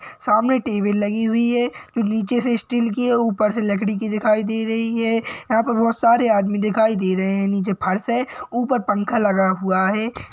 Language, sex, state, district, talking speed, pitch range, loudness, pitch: Hindi, male, Chhattisgarh, Rajnandgaon, 205 wpm, 205-235 Hz, -19 LUFS, 220 Hz